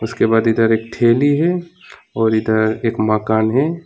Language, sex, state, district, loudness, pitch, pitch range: Hindi, male, West Bengal, Alipurduar, -16 LUFS, 115 Hz, 110-135 Hz